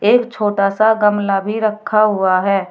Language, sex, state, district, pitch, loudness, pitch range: Hindi, female, Uttar Pradesh, Shamli, 210 Hz, -15 LUFS, 195-215 Hz